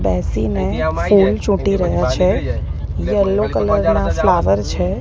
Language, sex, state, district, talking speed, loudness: Gujarati, female, Gujarat, Gandhinagar, 120 wpm, -17 LUFS